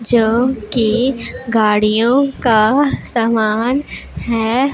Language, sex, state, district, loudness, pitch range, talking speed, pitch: Hindi, female, Punjab, Pathankot, -15 LUFS, 220-255 Hz, 75 wpm, 230 Hz